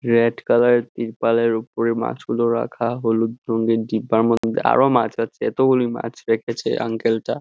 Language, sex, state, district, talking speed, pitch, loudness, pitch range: Bengali, male, West Bengal, Jhargram, 155 wpm, 115 Hz, -20 LUFS, 115-120 Hz